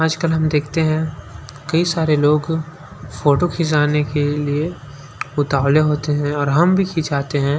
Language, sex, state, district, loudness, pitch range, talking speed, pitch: Hindi, male, Chhattisgarh, Sukma, -18 LUFS, 145-160 Hz, 150 wpm, 150 Hz